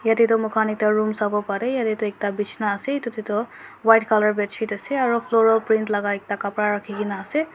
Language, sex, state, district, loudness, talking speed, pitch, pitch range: Nagamese, female, Nagaland, Dimapur, -22 LUFS, 200 wpm, 215 Hz, 205-225 Hz